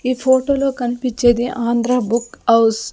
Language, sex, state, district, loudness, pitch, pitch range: Telugu, female, Andhra Pradesh, Sri Satya Sai, -17 LUFS, 245 Hz, 235-255 Hz